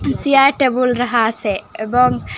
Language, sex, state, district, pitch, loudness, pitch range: Bengali, female, Assam, Hailakandi, 235 Hz, -16 LUFS, 205-255 Hz